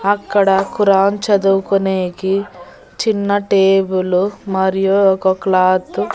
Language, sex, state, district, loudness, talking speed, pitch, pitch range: Telugu, female, Andhra Pradesh, Annamaya, -15 LUFS, 90 wpm, 195 Hz, 190-200 Hz